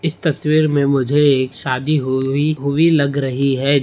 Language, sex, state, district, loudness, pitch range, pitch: Hindi, male, Bihar, Gaya, -16 LUFS, 135-150 Hz, 140 Hz